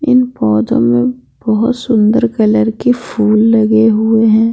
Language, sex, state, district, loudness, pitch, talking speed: Hindi, female, Bihar, Patna, -12 LUFS, 220 Hz, 145 wpm